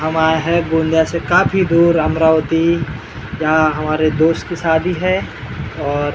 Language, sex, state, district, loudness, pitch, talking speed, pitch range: Hindi, male, Maharashtra, Gondia, -15 LUFS, 160 Hz, 165 wpm, 155-165 Hz